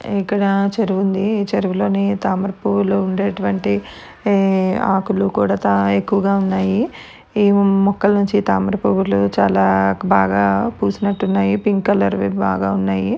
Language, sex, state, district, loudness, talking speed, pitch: Telugu, female, Andhra Pradesh, Anantapur, -17 LUFS, 110 wpm, 190 Hz